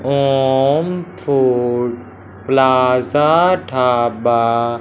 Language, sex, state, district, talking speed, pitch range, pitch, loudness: Hindi, male, Punjab, Fazilka, 50 wpm, 120-140 Hz, 130 Hz, -15 LUFS